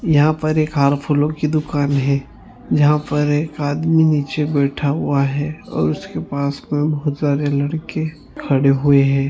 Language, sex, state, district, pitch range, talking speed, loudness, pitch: Hindi, male, Goa, North and South Goa, 140-150 Hz, 160 wpm, -18 LUFS, 145 Hz